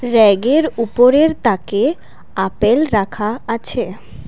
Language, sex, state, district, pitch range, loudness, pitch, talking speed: Bengali, female, Assam, Kamrup Metropolitan, 210-265 Hz, -15 LUFS, 230 Hz, 85 wpm